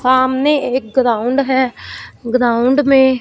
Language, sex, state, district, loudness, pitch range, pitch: Hindi, female, Punjab, Fazilka, -14 LUFS, 250-265 Hz, 260 Hz